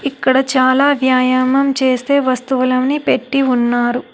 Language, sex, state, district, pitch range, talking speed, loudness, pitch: Telugu, female, Telangana, Hyderabad, 255-275 Hz, 100 wpm, -14 LUFS, 260 Hz